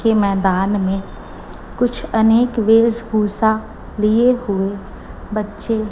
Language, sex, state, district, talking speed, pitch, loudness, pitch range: Hindi, female, Chhattisgarh, Raipur, 90 wpm, 215 Hz, -17 LUFS, 200-225 Hz